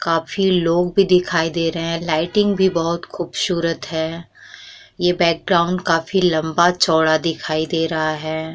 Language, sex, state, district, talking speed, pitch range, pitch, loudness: Hindi, female, Bihar, Vaishali, 140 wpm, 160-180 Hz, 165 Hz, -18 LUFS